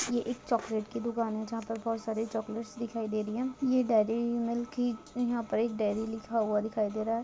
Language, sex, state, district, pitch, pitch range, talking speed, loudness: Hindi, female, Chhattisgarh, Sarguja, 225 Hz, 220-235 Hz, 240 wpm, -32 LUFS